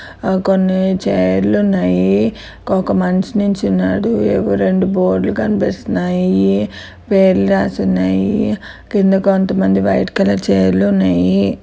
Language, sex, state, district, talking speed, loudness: Telugu, female, Telangana, Karimnagar, 120 wpm, -15 LUFS